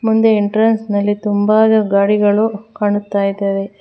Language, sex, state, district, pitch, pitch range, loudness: Kannada, female, Karnataka, Bangalore, 205 Hz, 205-220 Hz, -15 LUFS